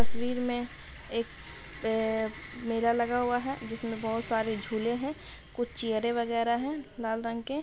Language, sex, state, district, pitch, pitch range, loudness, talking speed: Hindi, female, Bihar, Purnia, 235 Hz, 225-245 Hz, -32 LUFS, 155 wpm